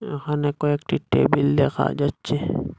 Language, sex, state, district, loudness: Bengali, male, Assam, Hailakandi, -22 LUFS